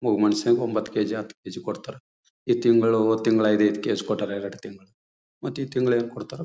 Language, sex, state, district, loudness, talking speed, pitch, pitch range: Kannada, male, Karnataka, Bellary, -24 LUFS, 240 wpm, 110 Hz, 105-120 Hz